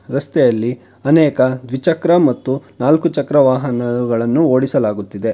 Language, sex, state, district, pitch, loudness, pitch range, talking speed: Kannada, male, Karnataka, Bangalore, 130 Hz, -15 LUFS, 120-145 Hz, 90 wpm